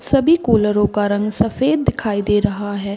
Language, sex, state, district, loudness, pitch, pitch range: Hindi, female, Bihar, Gaya, -17 LUFS, 210 Hz, 205-230 Hz